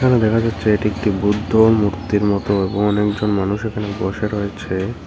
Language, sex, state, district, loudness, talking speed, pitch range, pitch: Bengali, male, Tripura, Unakoti, -18 LUFS, 165 wpm, 100-110 Hz, 105 Hz